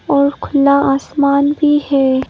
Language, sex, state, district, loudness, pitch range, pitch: Hindi, female, Arunachal Pradesh, Papum Pare, -13 LUFS, 275-285 Hz, 280 Hz